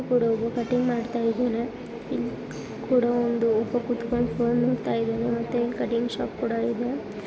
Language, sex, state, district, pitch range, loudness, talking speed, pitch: Kannada, female, Karnataka, Belgaum, 230-245 Hz, -26 LUFS, 165 wpm, 235 Hz